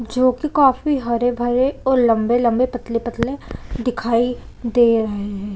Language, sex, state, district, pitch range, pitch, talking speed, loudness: Hindi, female, Chhattisgarh, Bilaspur, 230-255 Hz, 240 Hz, 120 wpm, -19 LUFS